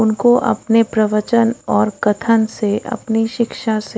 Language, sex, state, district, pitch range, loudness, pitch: Hindi, female, Odisha, Khordha, 210-230 Hz, -16 LUFS, 225 Hz